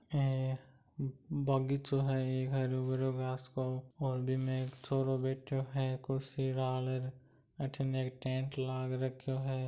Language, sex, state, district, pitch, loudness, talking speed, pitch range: Marwari, male, Rajasthan, Nagaur, 130 Hz, -36 LUFS, 135 wpm, 130-135 Hz